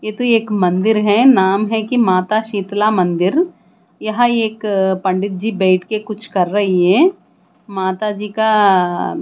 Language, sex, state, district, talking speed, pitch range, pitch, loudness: Hindi, female, Bihar, Katihar, 155 wpm, 190-220 Hz, 210 Hz, -15 LUFS